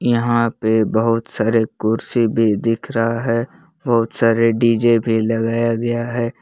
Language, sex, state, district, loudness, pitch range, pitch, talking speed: Hindi, male, Jharkhand, Palamu, -17 LUFS, 115-120 Hz, 115 Hz, 150 wpm